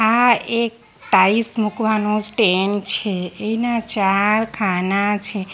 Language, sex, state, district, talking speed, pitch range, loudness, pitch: Gujarati, female, Gujarat, Valsad, 110 wpm, 200-225 Hz, -18 LUFS, 210 Hz